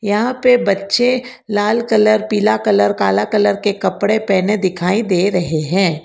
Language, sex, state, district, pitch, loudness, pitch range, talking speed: Hindi, female, Karnataka, Bangalore, 205 Hz, -15 LUFS, 185-215 Hz, 160 wpm